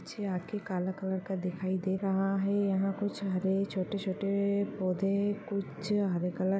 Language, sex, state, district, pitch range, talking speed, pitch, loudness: Hindi, female, Bihar, Bhagalpur, 185-200 Hz, 175 wpm, 195 Hz, -32 LUFS